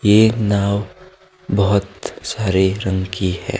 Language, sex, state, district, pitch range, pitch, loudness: Hindi, male, Himachal Pradesh, Shimla, 95-110 Hz, 100 Hz, -18 LUFS